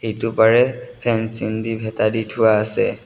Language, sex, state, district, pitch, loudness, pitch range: Assamese, male, Assam, Sonitpur, 110 Hz, -18 LUFS, 110-115 Hz